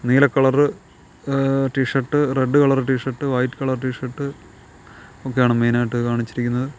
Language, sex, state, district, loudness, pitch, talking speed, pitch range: Malayalam, male, Kerala, Kollam, -20 LUFS, 130 Hz, 125 wpm, 120-135 Hz